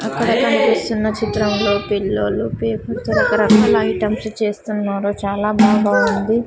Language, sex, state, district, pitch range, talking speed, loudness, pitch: Telugu, female, Andhra Pradesh, Sri Satya Sai, 205-215 Hz, 110 wpm, -17 LUFS, 210 Hz